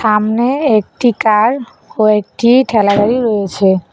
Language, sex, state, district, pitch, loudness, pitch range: Bengali, female, West Bengal, Cooch Behar, 215 Hz, -12 LUFS, 205-240 Hz